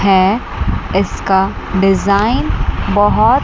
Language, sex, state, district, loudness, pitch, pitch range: Hindi, female, Chandigarh, Chandigarh, -14 LUFS, 195 Hz, 190-205 Hz